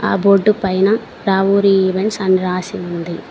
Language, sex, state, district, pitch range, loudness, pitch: Telugu, female, Telangana, Mahabubabad, 185-200 Hz, -15 LUFS, 195 Hz